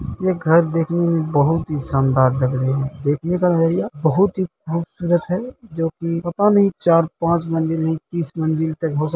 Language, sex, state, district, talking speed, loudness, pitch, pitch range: Hindi, male, Bihar, Saharsa, 215 wpm, -19 LUFS, 165 Hz, 155-175 Hz